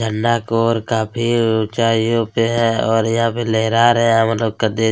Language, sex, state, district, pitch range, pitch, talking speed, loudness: Hindi, male, Chhattisgarh, Kabirdham, 110-115 Hz, 115 Hz, 195 wpm, -16 LUFS